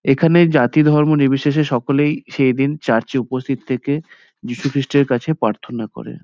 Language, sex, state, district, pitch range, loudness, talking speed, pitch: Bengali, male, West Bengal, Paschim Medinipur, 125-150 Hz, -17 LUFS, 145 wpm, 135 Hz